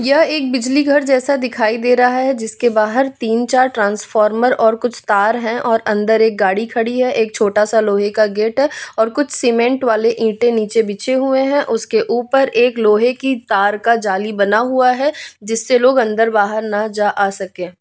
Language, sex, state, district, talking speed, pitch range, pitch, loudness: Hindi, female, Bihar, West Champaran, 190 wpm, 215-255 Hz, 230 Hz, -15 LUFS